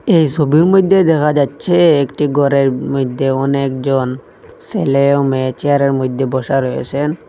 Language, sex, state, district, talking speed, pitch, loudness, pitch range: Bengali, male, Assam, Hailakandi, 130 wpm, 140 Hz, -14 LUFS, 135-150 Hz